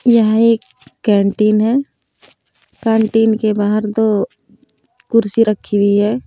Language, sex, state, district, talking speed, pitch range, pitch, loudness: Hindi, female, Uttar Pradesh, Saharanpur, 115 wpm, 205-225 Hz, 215 Hz, -15 LUFS